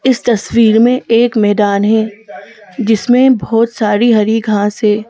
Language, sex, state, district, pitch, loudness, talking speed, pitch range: Hindi, female, Madhya Pradesh, Bhopal, 220 Hz, -12 LUFS, 140 wpm, 210-235 Hz